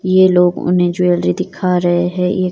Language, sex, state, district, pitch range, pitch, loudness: Hindi, female, Himachal Pradesh, Shimla, 175-180 Hz, 180 Hz, -14 LUFS